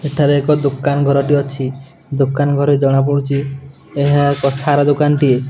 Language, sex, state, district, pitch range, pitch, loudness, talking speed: Odia, male, Odisha, Nuapada, 135-145 Hz, 140 Hz, -15 LUFS, 140 wpm